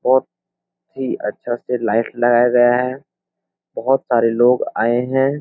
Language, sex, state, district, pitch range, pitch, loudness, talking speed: Hindi, male, Bihar, Supaul, 120-130 Hz, 125 Hz, -17 LUFS, 145 wpm